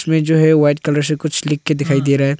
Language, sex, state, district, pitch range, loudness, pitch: Hindi, male, Arunachal Pradesh, Longding, 145-155 Hz, -15 LUFS, 150 Hz